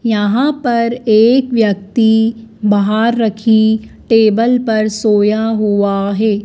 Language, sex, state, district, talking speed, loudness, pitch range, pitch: Hindi, female, Madhya Pradesh, Dhar, 100 wpm, -13 LUFS, 210-230 Hz, 220 Hz